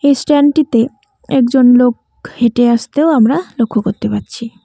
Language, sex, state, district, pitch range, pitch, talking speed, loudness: Bengali, female, West Bengal, Cooch Behar, 230-280 Hz, 245 Hz, 115 wpm, -12 LUFS